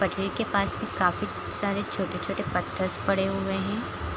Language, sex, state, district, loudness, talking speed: Hindi, female, Bihar, Kishanganj, -28 LUFS, 160 wpm